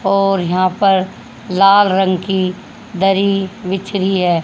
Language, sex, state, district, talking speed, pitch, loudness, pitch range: Hindi, female, Haryana, Rohtak, 135 wpm, 195 Hz, -15 LUFS, 185-195 Hz